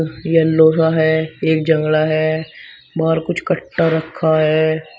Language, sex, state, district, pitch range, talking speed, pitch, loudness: Hindi, male, Uttar Pradesh, Shamli, 155-160 Hz, 130 wpm, 160 Hz, -16 LUFS